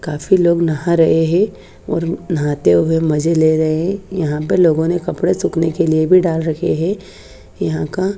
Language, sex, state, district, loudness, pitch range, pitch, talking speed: Hindi, female, Haryana, Charkhi Dadri, -16 LUFS, 155-175 Hz, 165 Hz, 190 wpm